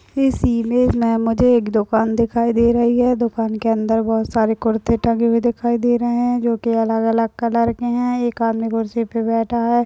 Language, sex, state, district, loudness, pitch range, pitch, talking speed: Hindi, female, Chhattisgarh, Balrampur, -18 LUFS, 225-240 Hz, 230 Hz, 205 wpm